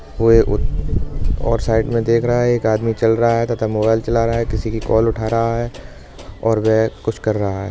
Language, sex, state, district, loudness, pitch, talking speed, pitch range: Bundeli, male, Uttar Pradesh, Budaun, -18 LUFS, 110 Hz, 235 wpm, 105-115 Hz